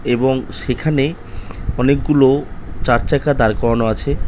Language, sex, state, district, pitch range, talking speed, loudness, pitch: Bengali, male, West Bengal, North 24 Parganas, 105-140 Hz, 110 wpm, -17 LUFS, 125 Hz